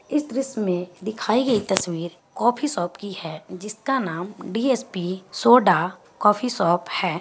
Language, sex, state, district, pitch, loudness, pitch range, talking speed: Hindi, female, Bihar, Gaya, 200 Hz, -23 LUFS, 175-245 Hz, 160 wpm